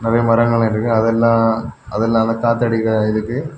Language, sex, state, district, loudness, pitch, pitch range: Tamil, male, Tamil Nadu, Kanyakumari, -16 LUFS, 115 Hz, 110-115 Hz